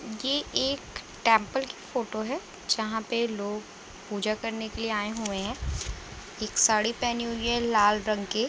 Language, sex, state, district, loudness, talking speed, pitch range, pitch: Hindi, female, Uttar Pradesh, Budaun, -28 LUFS, 175 wpm, 215-235 Hz, 220 Hz